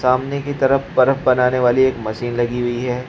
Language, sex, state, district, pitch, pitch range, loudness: Hindi, male, Uttar Pradesh, Shamli, 125 Hz, 120-130 Hz, -17 LUFS